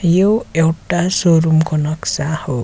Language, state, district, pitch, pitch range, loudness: Nepali, West Bengal, Darjeeling, 165 Hz, 155-175 Hz, -16 LUFS